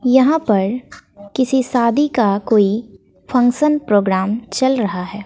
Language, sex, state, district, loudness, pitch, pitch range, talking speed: Hindi, female, Bihar, West Champaran, -16 LUFS, 235 Hz, 205-260 Hz, 125 wpm